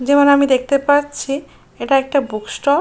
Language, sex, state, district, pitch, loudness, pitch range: Bengali, female, West Bengal, Jalpaiguri, 280 Hz, -16 LUFS, 270-285 Hz